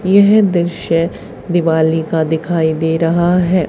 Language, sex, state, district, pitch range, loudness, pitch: Hindi, female, Haryana, Charkhi Dadri, 160-180 Hz, -14 LUFS, 170 Hz